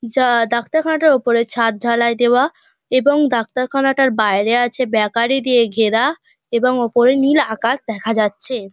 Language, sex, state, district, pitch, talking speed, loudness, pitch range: Bengali, female, West Bengal, Dakshin Dinajpur, 240 Hz, 90 wpm, -16 LUFS, 230-265 Hz